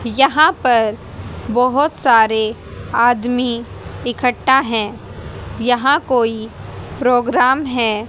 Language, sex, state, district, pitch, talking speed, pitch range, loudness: Hindi, female, Haryana, Jhajjar, 245 Hz, 80 wpm, 230-260 Hz, -16 LUFS